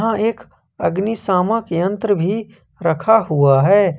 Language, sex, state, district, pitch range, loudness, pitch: Hindi, male, Jharkhand, Ranchi, 170-220 Hz, -17 LUFS, 200 Hz